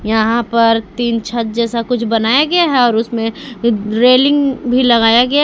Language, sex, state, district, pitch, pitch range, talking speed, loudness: Hindi, female, Jharkhand, Palamu, 235 Hz, 225-255 Hz, 165 wpm, -13 LUFS